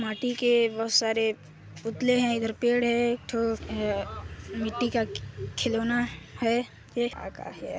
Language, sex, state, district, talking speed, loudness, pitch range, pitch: Hindi, male, Chhattisgarh, Sarguja, 160 wpm, -27 LUFS, 225-240 Hz, 235 Hz